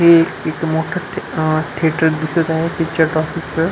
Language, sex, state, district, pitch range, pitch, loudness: Marathi, male, Maharashtra, Pune, 160-170 Hz, 160 Hz, -17 LUFS